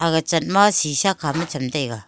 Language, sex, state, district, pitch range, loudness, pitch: Wancho, female, Arunachal Pradesh, Longding, 140-170 Hz, -19 LUFS, 160 Hz